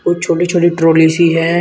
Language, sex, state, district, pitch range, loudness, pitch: Hindi, male, Uttar Pradesh, Shamli, 165-175 Hz, -12 LUFS, 170 Hz